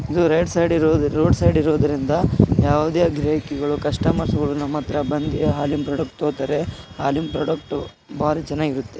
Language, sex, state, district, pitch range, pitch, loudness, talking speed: Kannada, male, Karnataka, Gulbarga, 145-155 Hz, 150 Hz, -20 LUFS, 115 wpm